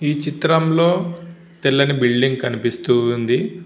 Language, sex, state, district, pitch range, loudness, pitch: Telugu, male, Andhra Pradesh, Visakhapatnam, 125-170 Hz, -18 LUFS, 150 Hz